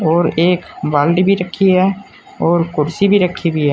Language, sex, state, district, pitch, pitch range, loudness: Hindi, male, Uttar Pradesh, Saharanpur, 180 Hz, 165-190 Hz, -15 LUFS